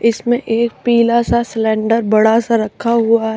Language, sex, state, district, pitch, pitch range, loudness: Hindi, female, Uttar Pradesh, Shamli, 230 Hz, 220-235 Hz, -14 LUFS